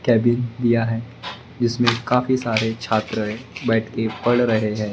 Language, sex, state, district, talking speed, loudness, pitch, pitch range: Hindi, male, Maharashtra, Gondia, 145 wpm, -21 LUFS, 115 Hz, 110-120 Hz